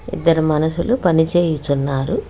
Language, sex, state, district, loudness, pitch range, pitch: Telugu, female, Telangana, Hyderabad, -17 LUFS, 150-170 Hz, 160 Hz